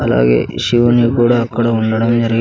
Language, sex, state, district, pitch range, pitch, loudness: Telugu, male, Andhra Pradesh, Sri Satya Sai, 115-120 Hz, 115 Hz, -13 LUFS